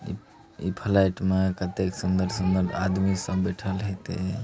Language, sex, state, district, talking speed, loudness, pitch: Angika, male, Bihar, Begusarai, 160 wpm, -26 LUFS, 95 Hz